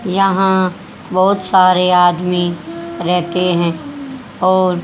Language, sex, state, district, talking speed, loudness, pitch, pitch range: Hindi, female, Haryana, Jhajjar, 100 wpm, -14 LUFS, 180 Hz, 175-190 Hz